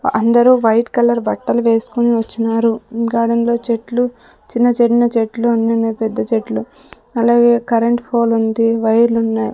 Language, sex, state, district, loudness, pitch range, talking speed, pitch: Telugu, female, Andhra Pradesh, Sri Satya Sai, -15 LUFS, 225-240 Hz, 125 wpm, 230 Hz